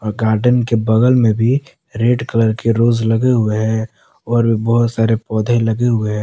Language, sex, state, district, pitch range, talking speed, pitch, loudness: Hindi, male, Jharkhand, Palamu, 110-120 Hz, 185 wpm, 115 Hz, -15 LUFS